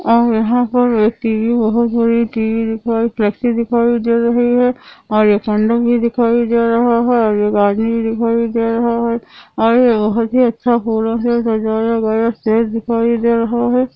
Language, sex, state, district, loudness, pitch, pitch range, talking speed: Hindi, female, Andhra Pradesh, Anantapur, -15 LUFS, 230 Hz, 225-235 Hz, 180 wpm